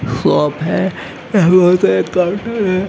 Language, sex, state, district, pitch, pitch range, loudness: Hindi, male, Bihar, Gaya, 185 Hz, 170-195 Hz, -14 LUFS